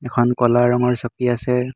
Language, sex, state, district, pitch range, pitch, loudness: Assamese, male, Assam, Hailakandi, 120-125 Hz, 125 Hz, -18 LUFS